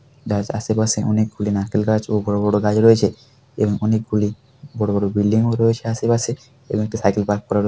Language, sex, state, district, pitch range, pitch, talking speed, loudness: Bengali, male, West Bengal, Paschim Medinipur, 105-115 Hz, 110 Hz, 210 wpm, -19 LUFS